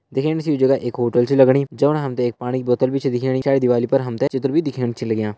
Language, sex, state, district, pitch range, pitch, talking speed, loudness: Hindi, male, Uttarakhand, Uttarkashi, 120-135 Hz, 130 Hz, 290 wpm, -19 LUFS